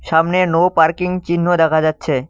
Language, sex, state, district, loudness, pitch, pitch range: Bengali, male, West Bengal, Cooch Behar, -15 LUFS, 170 Hz, 160-180 Hz